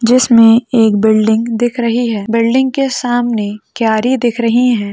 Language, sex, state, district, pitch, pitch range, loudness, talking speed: Hindi, female, Rajasthan, Churu, 235 Hz, 220-245 Hz, -12 LUFS, 160 wpm